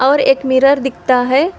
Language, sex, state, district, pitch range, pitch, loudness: Hindi, female, Telangana, Hyderabad, 260-275 Hz, 270 Hz, -13 LUFS